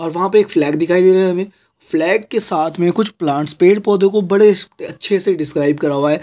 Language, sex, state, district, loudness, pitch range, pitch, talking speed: Hindi, male, Chhattisgarh, Korba, -15 LUFS, 165-210 Hz, 185 Hz, 240 wpm